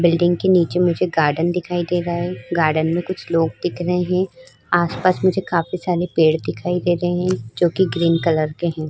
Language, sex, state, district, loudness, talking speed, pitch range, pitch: Hindi, female, Uttar Pradesh, Muzaffarnagar, -19 LUFS, 210 wpm, 165-180 Hz, 175 Hz